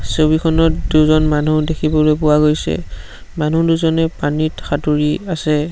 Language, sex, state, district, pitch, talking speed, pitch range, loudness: Assamese, male, Assam, Sonitpur, 155 Hz, 115 wpm, 150-160 Hz, -16 LUFS